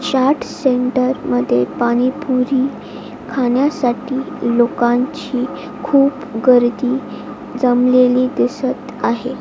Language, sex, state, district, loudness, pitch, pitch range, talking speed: Marathi, female, Maharashtra, Chandrapur, -16 LUFS, 255 Hz, 245-265 Hz, 70 wpm